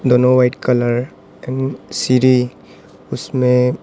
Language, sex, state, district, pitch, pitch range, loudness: Hindi, male, Arunachal Pradesh, Papum Pare, 125 Hz, 125-130 Hz, -16 LUFS